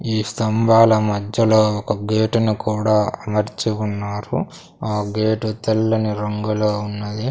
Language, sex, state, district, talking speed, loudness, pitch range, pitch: Telugu, male, Andhra Pradesh, Sri Satya Sai, 115 wpm, -19 LUFS, 105-110 Hz, 110 Hz